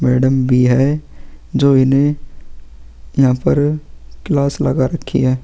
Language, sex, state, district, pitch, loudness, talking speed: Hindi, male, Chhattisgarh, Kabirdham, 130 Hz, -15 LUFS, 120 wpm